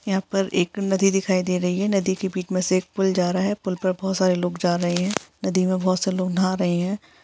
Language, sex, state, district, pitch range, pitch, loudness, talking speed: Hindi, female, Bihar, Jahanabad, 180-195 Hz, 185 Hz, -22 LUFS, 280 wpm